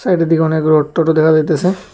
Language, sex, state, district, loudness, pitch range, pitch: Bengali, male, Tripura, West Tripura, -13 LUFS, 155-175 Hz, 160 Hz